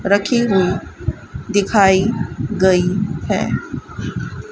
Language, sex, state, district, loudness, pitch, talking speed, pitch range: Hindi, female, Rajasthan, Bikaner, -18 LUFS, 195 Hz, 65 wpm, 190-205 Hz